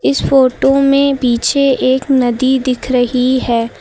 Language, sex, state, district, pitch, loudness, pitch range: Hindi, female, Uttar Pradesh, Lucknow, 255 Hz, -13 LUFS, 245-270 Hz